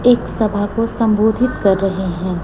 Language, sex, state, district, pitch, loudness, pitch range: Hindi, female, Chhattisgarh, Raipur, 210 Hz, -16 LUFS, 190-230 Hz